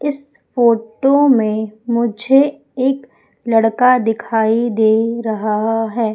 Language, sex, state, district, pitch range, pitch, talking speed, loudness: Hindi, female, Madhya Pradesh, Umaria, 220-260 Hz, 230 Hz, 100 wpm, -16 LUFS